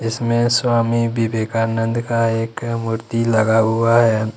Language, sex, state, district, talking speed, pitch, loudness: Hindi, male, Jharkhand, Ranchi, 125 wpm, 115 Hz, -18 LUFS